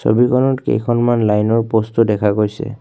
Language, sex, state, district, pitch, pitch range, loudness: Assamese, male, Assam, Kamrup Metropolitan, 115 Hz, 105-120 Hz, -16 LUFS